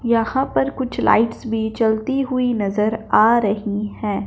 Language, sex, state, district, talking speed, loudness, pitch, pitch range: Hindi, male, Punjab, Fazilka, 155 wpm, -19 LUFS, 225 Hz, 210-245 Hz